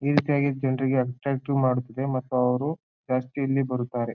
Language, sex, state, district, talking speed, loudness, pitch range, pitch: Kannada, male, Karnataka, Bijapur, 130 wpm, -26 LUFS, 125-140 Hz, 130 Hz